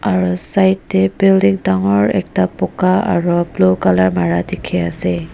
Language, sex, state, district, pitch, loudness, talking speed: Nagamese, female, Nagaland, Dimapur, 95 Hz, -15 LUFS, 135 wpm